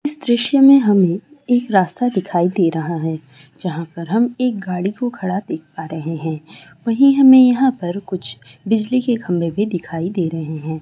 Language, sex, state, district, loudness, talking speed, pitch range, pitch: Maithili, female, Bihar, Sitamarhi, -17 LUFS, 190 wpm, 165-240 Hz, 190 Hz